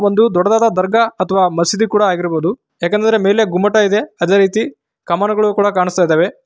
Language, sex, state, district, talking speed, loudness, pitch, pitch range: Kannada, male, Karnataka, Raichur, 160 wpm, -14 LUFS, 205 Hz, 180-220 Hz